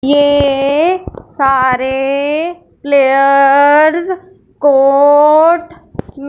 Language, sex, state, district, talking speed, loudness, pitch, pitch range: Hindi, female, Punjab, Fazilka, 50 wpm, -11 LUFS, 285 Hz, 275-315 Hz